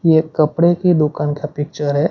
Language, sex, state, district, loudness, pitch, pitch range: Hindi, male, Gujarat, Gandhinagar, -17 LUFS, 155 Hz, 150-165 Hz